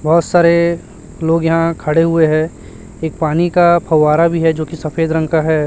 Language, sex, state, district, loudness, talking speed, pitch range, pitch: Hindi, male, Chhattisgarh, Raipur, -14 LUFS, 200 wpm, 155-165 Hz, 160 Hz